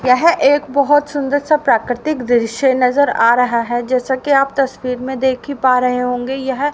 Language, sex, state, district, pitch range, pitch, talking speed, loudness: Hindi, female, Haryana, Rohtak, 250-280 Hz, 265 Hz, 185 wpm, -15 LUFS